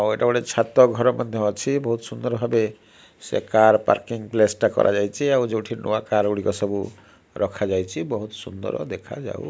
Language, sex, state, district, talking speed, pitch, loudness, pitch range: Odia, male, Odisha, Malkangiri, 175 wpm, 110 Hz, -22 LUFS, 105-120 Hz